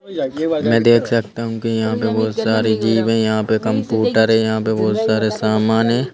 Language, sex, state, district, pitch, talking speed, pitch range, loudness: Hindi, male, Madhya Pradesh, Bhopal, 110 Hz, 205 wpm, 110-115 Hz, -17 LUFS